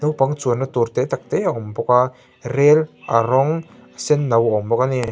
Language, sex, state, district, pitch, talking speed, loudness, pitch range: Mizo, male, Mizoram, Aizawl, 130 Hz, 225 wpm, -19 LUFS, 115-150 Hz